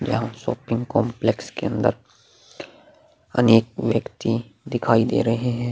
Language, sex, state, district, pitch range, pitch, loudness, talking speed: Hindi, male, Bihar, Vaishali, 115-125 Hz, 115 Hz, -22 LUFS, 115 wpm